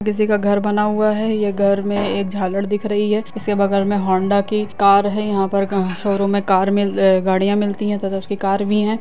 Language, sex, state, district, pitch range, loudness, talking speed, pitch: Hindi, female, Bihar, Lakhisarai, 195-210 Hz, -18 LUFS, 240 wpm, 200 Hz